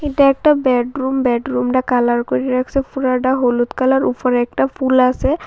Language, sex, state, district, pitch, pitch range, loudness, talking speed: Bengali, female, Tripura, West Tripura, 255 Hz, 250-270 Hz, -16 LUFS, 165 wpm